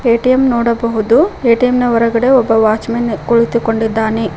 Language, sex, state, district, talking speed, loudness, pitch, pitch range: Kannada, female, Karnataka, Koppal, 125 wpm, -13 LUFS, 235 Hz, 225-240 Hz